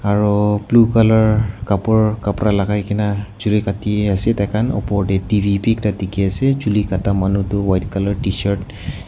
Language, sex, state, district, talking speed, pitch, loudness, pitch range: Nagamese, male, Nagaland, Kohima, 170 wpm, 105 Hz, -17 LUFS, 100-110 Hz